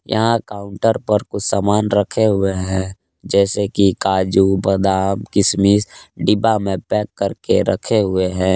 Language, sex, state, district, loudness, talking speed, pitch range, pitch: Hindi, male, Jharkhand, Palamu, -17 LUFS, 140 wpm, 95-105 Hz, 100 Hz